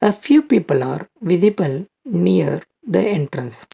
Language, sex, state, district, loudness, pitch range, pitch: English, male, Karnataka, Bangalore, -18 LUFS, 140-210 Hz, 185 Hz